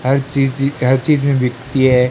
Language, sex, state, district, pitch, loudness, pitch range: Hindi, male, Rajasthan, Bikaner, 135 Hz, -15 LUFS, 130-140 Hz